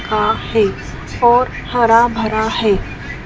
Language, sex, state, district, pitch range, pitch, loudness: Hindi, female, Madhya Pradesh, Dhar, 210-240 Hz, 225 Hz, -15 LUFS